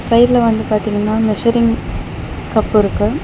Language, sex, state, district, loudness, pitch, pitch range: Tamil, female, Tamil Nadu, Chennai, -15 LUFS, 220 Hz, 215-235 Hz